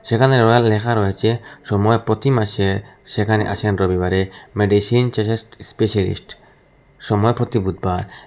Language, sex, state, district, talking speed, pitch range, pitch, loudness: Bengali, male, Assam, Hailakandi, 115 wpm, 100-115 Hz, 110 Hz, -18 LUFS